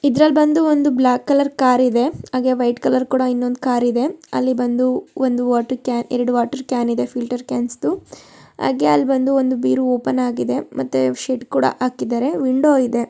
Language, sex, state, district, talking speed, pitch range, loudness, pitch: Kannada, male, Karnataka, Shimoga, 160 wpm, 240-265 Hz, -18 LUFS, 250 Hz